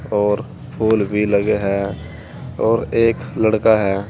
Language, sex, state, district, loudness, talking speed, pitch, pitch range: Hindi, male, Uttar Pradesh, Saharanpur, -18 LUFS, 130 wpm, 105 Hz, 100-110 Hz